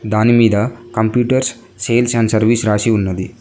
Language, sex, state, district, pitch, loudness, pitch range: Telugu, male, Telangana, Mahabubabad, 115 Hz, -15 LUFS, 110-120 Hz